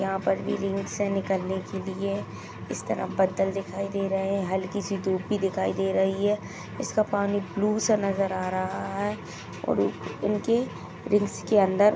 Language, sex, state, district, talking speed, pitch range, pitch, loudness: Hindi, female, Chhattisgarh, Rajnandgaon, 190 wpm, 190-205 Hz, 195 Hz, -27 LUFS